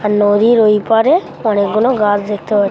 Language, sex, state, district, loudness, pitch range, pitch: Bengali, male, West Bengal, Jhargram, -13 LUFS, 205-220 Hz, 210 Hz